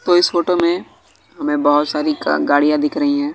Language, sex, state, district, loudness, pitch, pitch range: Hindi, male, Bihar, West Champaran, -17 LUFS, 155 Hz, 150-180 Hz